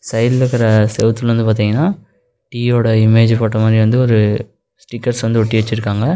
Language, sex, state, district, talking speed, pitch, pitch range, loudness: Tamil, male, Tamil Nadu, Namakkal, 145 wpm, 115 Hz, 110-120 Hz, -14 LUFS